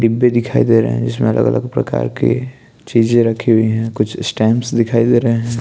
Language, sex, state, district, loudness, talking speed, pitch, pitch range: Hindi, male, Maharashtra, Chandrapur, -15 LUFS, 215 wpm, 115 Hz, 110-120 Hz